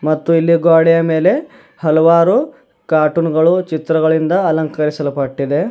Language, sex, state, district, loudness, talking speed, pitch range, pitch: Kannada, male, Karnataka, Bidar, -14 LUFS, 95 wpm, 155-170 Hz, 160 Hz